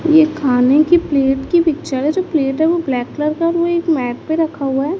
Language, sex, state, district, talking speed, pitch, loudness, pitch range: Hindi, female, Chhattisgarh, Raipur, 250 wpm, 310 Hz, -16 LUFS, 270-335 Hz